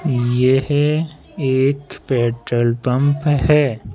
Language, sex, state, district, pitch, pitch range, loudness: Hindi, male, Madhya Pradesh, Bhopal, 135 Hz, 120-145 Hz, -17 LUFS